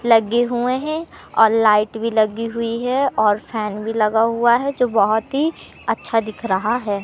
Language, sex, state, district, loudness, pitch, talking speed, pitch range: Hindi, male, Madhya Pradesh, Katni, -19 LUFS, 230 Hz, 185 wpm, 215-245 Hz